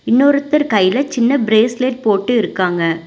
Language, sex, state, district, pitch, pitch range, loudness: Tamil, female, Tamil Nadu, Nilgiris, 235 Hz, 195-270 Hz, -15 LUFS